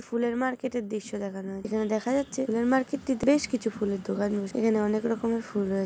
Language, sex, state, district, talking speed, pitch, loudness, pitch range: Bengali, female, West Bengal, North 24 Parganas, 235 wpm, 225 Hz, -28 LUFS, 210-255 Hz